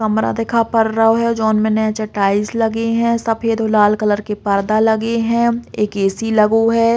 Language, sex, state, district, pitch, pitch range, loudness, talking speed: Bundeli, female, Uttar Pradesh, Hamirpur, 220 Hz, 215-230 Hz, -16 LUFS, 200 wpm